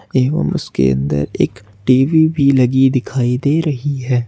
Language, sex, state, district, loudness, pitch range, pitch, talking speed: Hindi, male, Jharkhand, Ranchi, -15 LUFS, 120-140 Hz, 130 Hz, 155 wpm